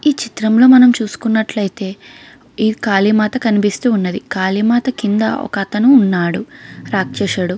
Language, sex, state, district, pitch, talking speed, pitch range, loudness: Telugu, female, Andhra Pradesh, Krishna, 215 Hz, 120 wpm, 195-240 Hz, -14 LUFS